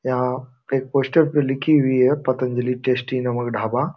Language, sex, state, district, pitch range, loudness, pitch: Hindi, male, Uttar Pradesh, Jalaun, 125-135 Hz, -20 LUFS, 130 Hz